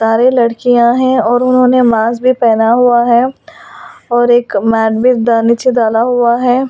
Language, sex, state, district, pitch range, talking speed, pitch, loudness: Hindi, female, Delhi, New Delhi, 230-250 Hz, 160 wpm, 240 Hz, -10 LUFS